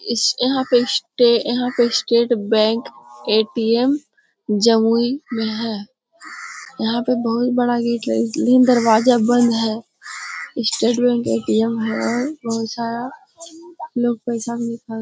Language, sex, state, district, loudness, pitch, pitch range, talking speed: Hindi, female, Bihar, Jamui, -18 LUFS, 235 Hz, 225-245 Hz, 130 wpm